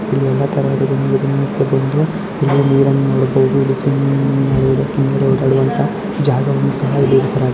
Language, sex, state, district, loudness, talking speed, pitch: Kannada, female, Karnataka, Raichur, -15 LUFS, 105 wpm, 135 Hz